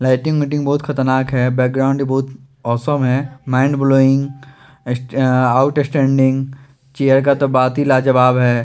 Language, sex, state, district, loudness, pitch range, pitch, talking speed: Hindi, male, Chandigarh, Chandigarh, -15 LUFS, 130-140 Hz, 135 Hz, 145 wpm